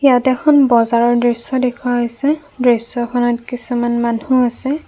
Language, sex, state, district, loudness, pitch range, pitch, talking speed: Assamese, female, Assam, Kamrup Metropolitan, -15 LUFS, 240-260 Hz, 245 Hz, 125 wpm